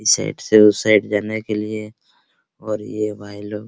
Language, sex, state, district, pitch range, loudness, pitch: Hindi, male, Bihar, Araria, 105-110 Hz, -18 LUFS, 105 Hz